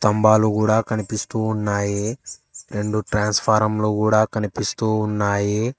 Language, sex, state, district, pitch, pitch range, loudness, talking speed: Telugu, male, Telangana, Hyderabad, 110 Hz, 105-110 Hz, -20 LUFS, 105 wpm